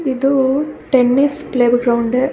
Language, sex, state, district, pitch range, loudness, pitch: Kannada, female, Karnataka, Gulbarga, 245-275 Hz, -15 LUFS, 265 Hz